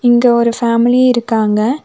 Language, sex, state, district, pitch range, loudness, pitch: Tamil, female, Tamil Nadu, Nilgiris, 230-245 Hz, -12 LUFS, 235 Hz